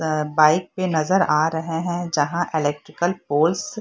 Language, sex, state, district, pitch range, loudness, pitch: Hindi, female, Bihar, Purnia, 155-175 Hz, -21 LUFS, 160 Hz